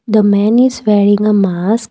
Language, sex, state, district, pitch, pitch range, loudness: English, female, Assam, Kamrup Metropolitan, 210 Hz, 205-220 Hz, -12 LUFS